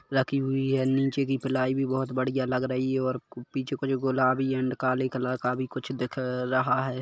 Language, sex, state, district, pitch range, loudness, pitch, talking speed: Hindi, male, Chhattisgarh, Kabirdham, 130-135 Hz, -28 LUFS, 130 Hz, 215 wpm